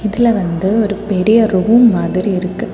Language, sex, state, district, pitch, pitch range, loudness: Tamil, female, Tamil Nadu, Kanyakumari, 205 Hz, 185-220 Hz, -13 LUFS